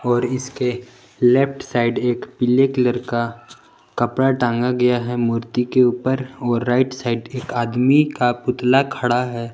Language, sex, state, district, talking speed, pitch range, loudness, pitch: Hindi, male, Jharkhand, Palamu, 150 wpm, 120-130 Hz, -19 LUFS, 125 Hz